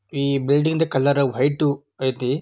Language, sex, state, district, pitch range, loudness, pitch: Kannada, male, Karnataka, Belgaum, 135-145 Hz, -21 LUFS, 140 Hz